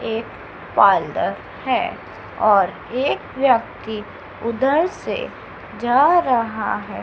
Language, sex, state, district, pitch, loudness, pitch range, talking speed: Hindi, female, Madhya Pradesh, Dhar, 240 Hz, -20 LUFS, 225-275 Hz, 95 wpm